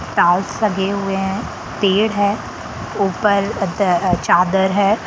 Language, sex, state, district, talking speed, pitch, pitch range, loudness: Hindi, female, Bihar, Sitamarhi, 120 wpm, 195 Hz, 190-205 Hz, -17 LUFS